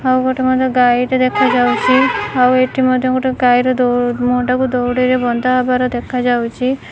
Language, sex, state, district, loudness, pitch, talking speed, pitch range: Odia, female, Odisha, Malkangiri, -14 LUFS, 255 Hz, 120 wpm, 245-255 Hz